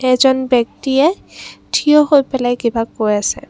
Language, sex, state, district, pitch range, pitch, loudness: Assamese, female, Assam, Kamrup Metropolitan, 235-275 Hz, 260 Hz, -15 LUFS